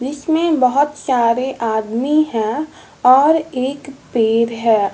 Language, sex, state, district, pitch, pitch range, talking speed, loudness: Hindi, male, Bihar, West Champaran, 260 Hz, 230-295 Hz, 110 wpm, -16 LUFS